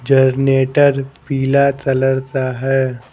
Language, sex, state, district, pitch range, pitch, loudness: Hindi, male, Bihar, Patna, 130-140 Hz, 135 Hz, -16 LUFS